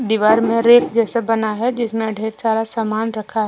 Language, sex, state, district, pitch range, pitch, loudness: Hindi, female, Jharkhand, Deoghar, 220-230 Hz, 225 Hz, -17 LUFS